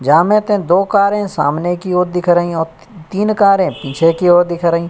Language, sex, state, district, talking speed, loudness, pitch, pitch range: Hindi, male, Uttar Pradesh, Budaun, 230 wpm, -14 LUFS, 175 Hz, 165-195 Hz